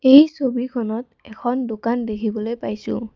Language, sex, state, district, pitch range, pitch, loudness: Assamese, female, Assam, Kamrup Metropolitan, 220-255 Hz, 235 Hz, -21 LUFS